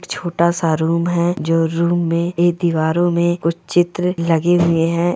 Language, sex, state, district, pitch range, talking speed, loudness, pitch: Hindi, male, Goa, North and South Goa, 165-175 Hz, 175 wpm, -17 LUFS, 170 Hz